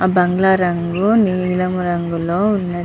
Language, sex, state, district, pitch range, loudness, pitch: Telugu, male, Andhra Pradesh, Visakhapatnam, 175-190 Hz, -17 LUFS, 180 Hz